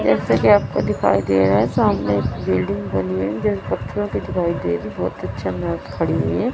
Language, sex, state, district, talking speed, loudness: Hindi, female, Chandigarh, Chandigarh, 130 wpm, -20 LUFS